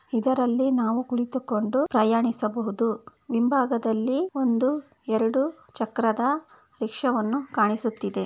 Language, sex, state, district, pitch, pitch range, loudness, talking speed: Kannada, female, Karnataka, Bellary, 240 Hz, 225-265 Hz, -25 LUFS, 75 wpm